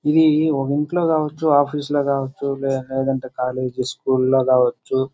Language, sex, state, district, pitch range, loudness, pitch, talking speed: Telugu, male, Andhra Pradesh, Chittoor, 130-150 Hz, -20 LUFS, 135 Hz, 130 wpm